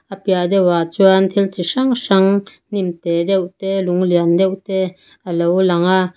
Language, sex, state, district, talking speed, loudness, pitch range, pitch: Mizo, female, Mizoram, Aizawl, 185 wpm, -16 LUFS, 175-195 Hz, 190 Hz